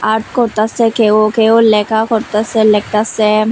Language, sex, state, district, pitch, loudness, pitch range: Bengali, female, Tripura, West Tripura, 220 Hz, -12 LUFS, 215-225 Hz